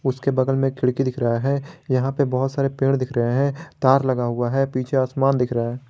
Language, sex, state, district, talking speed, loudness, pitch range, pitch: Hindi, male, Jharkhand, Garhwa, 245 wpm, -21 LUFS, 125-135 Hz, 130 Hz